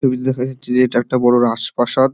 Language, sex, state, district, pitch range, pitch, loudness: Bengali, male, West Bengal, Dakshin Dinajpur, 120-130 Hz, 125 Hz, -17 LUFS